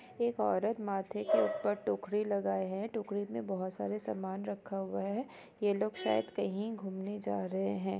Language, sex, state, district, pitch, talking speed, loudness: Hindi, female, Bihar, East Champaran, 200 Hz, 180 wpm, -35 LUFS